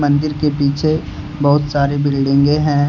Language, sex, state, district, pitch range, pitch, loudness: Hindi, male, Jharkhand, Deoghar, 140-150 Hz, 145 Hz, -16 LUFS